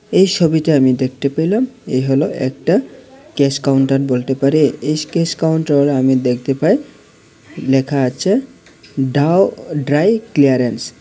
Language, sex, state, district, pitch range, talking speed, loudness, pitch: Bengali, male, Tripura, Unakoti, 135-160 Hz, 130 wpm, -15 LUFS, 140 Hz